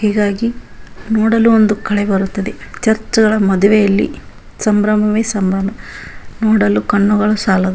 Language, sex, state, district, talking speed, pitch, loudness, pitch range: Kannada, female, Karnataka, Bijapur, 110 wpm, 210 Hz, -14 LUFS, 200-220 Hz